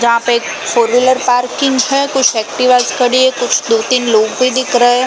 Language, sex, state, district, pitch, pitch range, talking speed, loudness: Hindi, female, Chhattisgarh, Balrampur, 245 Hz, 235-255 Hz, 235 wpm, -12 LUFS